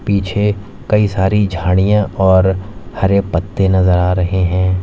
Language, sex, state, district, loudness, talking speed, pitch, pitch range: Hindi, male, Uttar Pradesh, Lalitpur, -14 LUFS, 135 wpm, 95 Hz, 95-100 Hz